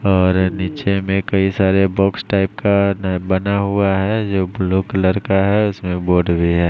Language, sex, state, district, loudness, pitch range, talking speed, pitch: Hindi, male, Maharashtra, Mumbai Suburban, -17 LUFS, 95-100 Hz, 190 wpm, 95 Hz